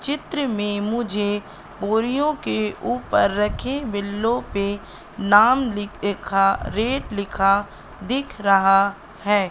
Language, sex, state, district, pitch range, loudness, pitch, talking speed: Hindi, female, Madhya Pradesh, Katni, 200-240 Hz, -21 LUFS, 205 Hz, 115 wpm